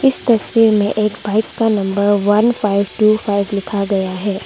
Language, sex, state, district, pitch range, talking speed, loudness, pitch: Hindi, female, Arunachal Pradesh, Longding, 200-220 Hz, 175 wpm, -15 LUFS, 205 Hz